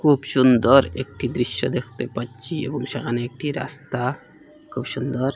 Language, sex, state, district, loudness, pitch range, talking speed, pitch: Bengali, male, Assam, Hailakandi, -22 LUFS, 125-145 Hz, 135 wpm, 130 Hz